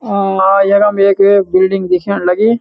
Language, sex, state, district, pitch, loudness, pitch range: Garhwali, male, Uttarakhand, Uttarkashi, 195 Hz, -11 LUFS, 190-200 Hz